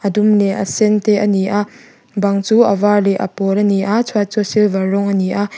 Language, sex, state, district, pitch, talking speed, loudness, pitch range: Mizo, female, Mizoram, Aizawl, 205 Hz, 270 wpm, -15 LUFS, 195-210 Hz